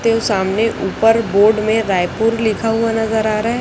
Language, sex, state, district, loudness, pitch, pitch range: Hindi, male, Chhattisgarh, Raipur, -16 LUFS, 220 Hz, 215-225 Hz